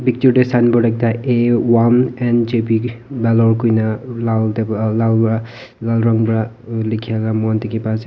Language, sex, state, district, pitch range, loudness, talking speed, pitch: Nagamese, male, Nagaland, Kohima, 110-120 Hz, -16 LUFS, 170 wpm, 115 Hz